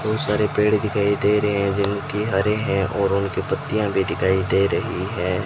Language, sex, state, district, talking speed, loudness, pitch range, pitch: Hindi, male, Rajasthan, Bikaner, 200 wpm, -21 LUFS, 100-105 Hz, 100 Hz